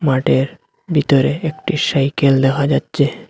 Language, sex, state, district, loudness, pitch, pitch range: Bengali, male, Assam, Hailakandi, -16 LUFS, 140 Hz, 135-155 Hz